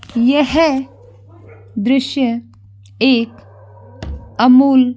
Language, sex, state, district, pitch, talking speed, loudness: Hindi, female, Jharkhand, Sahebganj, 225 Hz, 60 wpm, -14 LUFS